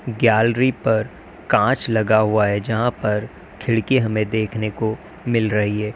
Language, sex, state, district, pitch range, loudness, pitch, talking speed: Hindi, male, Uttar Pradesh, Lalitpur, 105-120 Hz, -20 LUFS, 110 Hz, 150 wpm